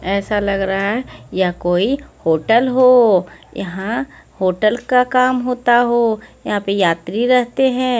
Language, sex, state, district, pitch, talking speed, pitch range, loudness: Hindi, female, Haryana, Rohtak, 225 Hz, 145 wpm, 195-250 Hz, -16 LUFS